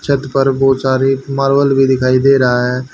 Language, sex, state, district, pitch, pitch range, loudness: Hindi, male, Haryana, Charkhi Dadri, 135 Hz, 130-135 Hz, -13 LUFS